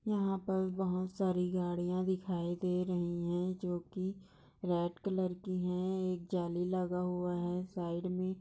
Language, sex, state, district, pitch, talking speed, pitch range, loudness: Hindi, female, Maharashtra, Nagpur, 180 Hz, 155 wpm, 175-185 Hz, -36 LUFS